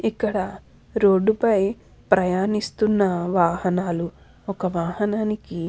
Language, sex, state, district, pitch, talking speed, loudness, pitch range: Telugu, female, Andhra Pradesh, Anantapur, 195 Hz, 85 wpm, -22 LUFS, 180-215 Hz